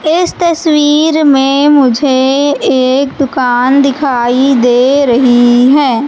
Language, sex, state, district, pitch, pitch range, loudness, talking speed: Hindi, female, Madhya Pradesh, Katni, 275 Hz, 255-290 Hz, -9 LUFS, 100 wpm